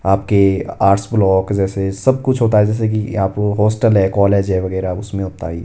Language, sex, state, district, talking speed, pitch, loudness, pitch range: Hindi, male, Himachal Pradesh, Shimla, 225 wpm, 100 Hz, -16 LUFS, 95-105 Hz